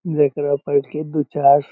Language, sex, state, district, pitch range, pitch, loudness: Magahi, male, Bihar, Lakhisarai, 140-150 Hz, 145 Hz, -19 LUFS